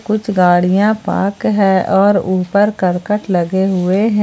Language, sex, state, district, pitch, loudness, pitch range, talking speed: Hindi, female, Jharkhand, Palamu, 195 Hz, -14 LUFS, 185-210 Hz, 140 wpm